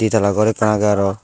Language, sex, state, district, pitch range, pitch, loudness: Chakma, male, Tripura, Dhalai, 100-110 Hz, 105 Hz, -16 LUFS